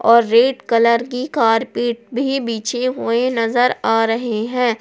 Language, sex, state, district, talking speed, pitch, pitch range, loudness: Hindi, female, Jharkhand, Palamu, 150 wpm, 235 Hz, 230-250 Hz, -17 LUFS